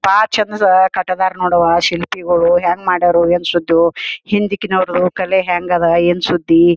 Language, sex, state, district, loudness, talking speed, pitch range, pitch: Kannada, female, Karnataka, Gulbarga, -14 LUFS, 135 wpm, 175-185 Hz, 175 Hz